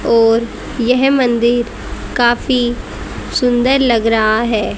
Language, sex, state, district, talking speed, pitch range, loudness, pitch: Hindi, female, Haryana, Rohtak, 100 wpm, 230-250 Hz, -14 LUFS, 240 Hz